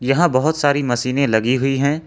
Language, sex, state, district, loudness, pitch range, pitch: Hindi, male, Jharkhand, Ranchi, -17 LUFS, 130-145 Hz, 135 Hz